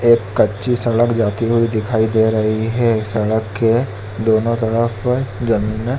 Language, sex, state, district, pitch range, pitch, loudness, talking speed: Hindi, male, Chhattisgarh, Bilaspur, 110-115 Hz, 115 Hz, -17 LUFS, 160 wpm